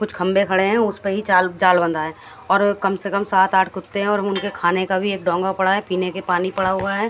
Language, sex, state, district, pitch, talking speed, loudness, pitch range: Hindi, female, Haryana, Jhajjar, 190 Hz, 280 wpm, -19 LUFS, 185-200 Hz